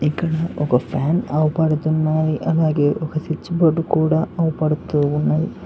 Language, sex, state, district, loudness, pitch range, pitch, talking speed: Telugu, male, Telangana, Mahabubabad, -19 LUFS, 150-160 Hz, 155 Hz, 95 wpm